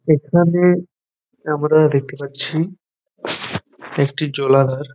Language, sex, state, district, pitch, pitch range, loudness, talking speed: Bengali, male, West Bengal, Paschim Medinipur, 150 Hz, 140-170 Hz, -18 LUFS, 75 wpm